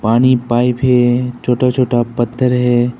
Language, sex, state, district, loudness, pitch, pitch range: Hindi, male, Arunachal Pradesh, Papum Pare, -14 LUFS, 125 Hz, 120-125 Hz